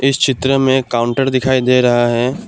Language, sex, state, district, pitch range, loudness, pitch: Hindi, male, Assam, Kamrup Metropolitan, 120-135 Hz, -14 LUFS, 130 Hz